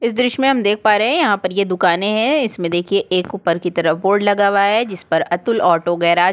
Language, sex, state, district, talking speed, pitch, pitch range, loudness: Hindi, female, Chhattisgarh, Korba, 255 wpm, 200 Hz, 175-220 Hz, -16 LUFS